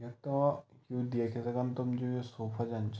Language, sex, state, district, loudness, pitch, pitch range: Garhwali, male, Uttarakhand, Tehri Garhwal, -35 LUFS, 125 Hz, 115-125 Hz